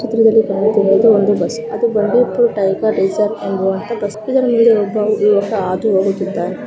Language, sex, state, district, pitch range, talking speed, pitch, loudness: Kannada, female, Karnataka, Dakshina Kannada, 195-225 Hz, 100 wpm, 210 Hz, -15 LUFS